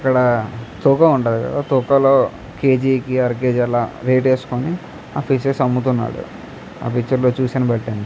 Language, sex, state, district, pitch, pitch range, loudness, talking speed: Telugu, male, Andhra Pradesh, Krishna, 130 Hz, 120-135 Hz, -17 LUFS, 90 wpm